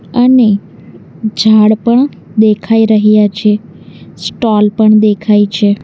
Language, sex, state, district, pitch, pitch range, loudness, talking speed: Gujarati, female, Gujarat, Valsad, 215 Hz, 210-220 Hz, -10 LUFS, 105 wpm